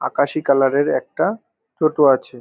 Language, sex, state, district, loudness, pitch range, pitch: Bengali, male, West Bengal, North 24 Parganas, -18 LUFS, 135-155 Hz, 140 Hz